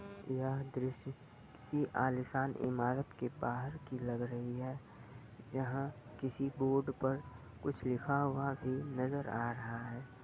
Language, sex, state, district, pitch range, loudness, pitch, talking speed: Hindi, female, Bihar, Purnia, 120-135 Hz, -39 LUFS, 130 Hz, 135 wpm